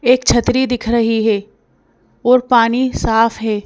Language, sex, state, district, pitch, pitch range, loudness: Hindi, female, Madhya Pradesh, Bhopal, 235 Hz, 225-250 Hz, -15 LUFS